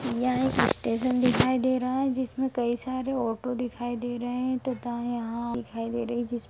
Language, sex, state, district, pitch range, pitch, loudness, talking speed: Hindi, female, Bihar, Lakhisarai, 235-255 Hz, 245 Hz, -27 LUFS, 185 wpm